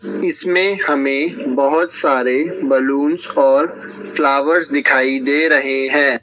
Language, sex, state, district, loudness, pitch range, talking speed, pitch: Hindi, male, Rajasthan, Jaipur, -15 LUFS, 135-180 Hz, 105 wpm, 145 Hz